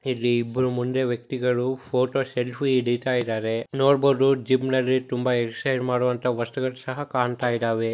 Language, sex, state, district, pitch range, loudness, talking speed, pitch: Kannada, male, Karnataka, Bellary, 120-130 Hz, -24 LUFS, 130 wpm, 125 Hz